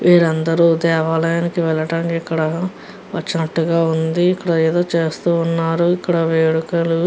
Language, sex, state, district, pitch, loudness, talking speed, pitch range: Telugu, female, Andhra Pradesh, Guntur, 165 Hz, -17 LUFS, 120 wpm, 160-170 Hz